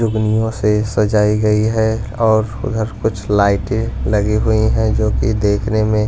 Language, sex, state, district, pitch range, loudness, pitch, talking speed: Hindi, male, Punjab, Pathankot, 105-110 Hz, -16 LUFS, 110 Hz, 160 wpm